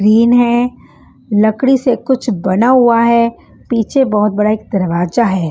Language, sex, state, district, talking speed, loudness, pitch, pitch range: Hindi, female, Bihar, West Champaran, 165 wpm, -13 LUFS, 230 Hz, 210-245 Hz